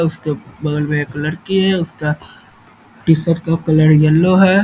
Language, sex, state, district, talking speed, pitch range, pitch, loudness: Hindi, male, Bihar, East Champaran, 155 wpm, 150-170 Hz, 155 Hz, -15 LUFS